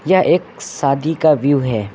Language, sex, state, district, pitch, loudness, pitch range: Hindi, male, Uttar Pradesh, Lucknow, 145 Hz, -16 LUFS, 135-160 Hz